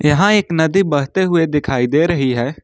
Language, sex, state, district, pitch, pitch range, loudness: Hindi, male, Jharkhand, Ranchi, 155 Hz, 140-175 Hz, -15 LUFS